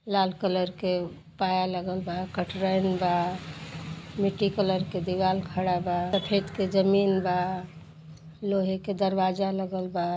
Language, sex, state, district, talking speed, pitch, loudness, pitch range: Bhojpuri, female, Uttar Pradesh, Gorakhpur, 140 wpm, 185 Hz, -27 LUFS, 180-195 Hz